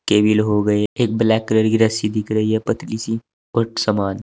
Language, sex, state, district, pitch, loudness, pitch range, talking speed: Hindi, male, Uttar Pradesh, Saharanpur, 110 Hz, -19 LUFS, 105-110 Hz, 210 wpm